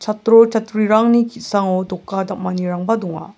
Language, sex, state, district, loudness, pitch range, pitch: Garo, male, Meghalaya, South Garo Hills, -16 LUFS, 185-225 Hz, 210 Hz